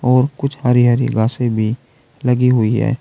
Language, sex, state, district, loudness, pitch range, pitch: Hindi, male, Uttar Pradesh, Saharanpur, -16 LUFS, 120-130 Hz, 125 Hz